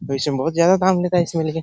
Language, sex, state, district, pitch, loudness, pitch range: Hindi, male, Bihar, Jahanabad, 170 Hz, -18 LUFS, 155-180 Hz